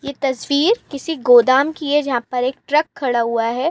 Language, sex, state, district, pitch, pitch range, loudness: Hindi, female, Uttar Pradesh, Gorakhpur, 280 Hz, 250-295 Hz, -17 LUFS